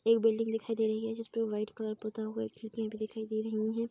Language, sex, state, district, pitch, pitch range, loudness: Hindi, female, Bihar, Vaishali, 220 Hz, 215-225 Hz, -34 LUFS